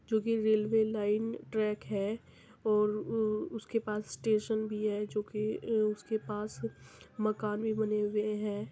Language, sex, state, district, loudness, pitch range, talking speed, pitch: Hindi, female, Uttar Pradesh, Muzaffarnagar, -33 LUFS, 210-220 Hz, 150 wpm, 215 Hz